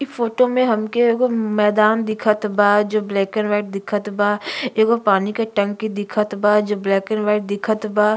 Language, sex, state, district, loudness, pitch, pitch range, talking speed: Bhojpuri, female, Uttar Pradesh, Gorakhpur, -18 LUFS, 210 Hz, 205-220 Hz, 190 wpm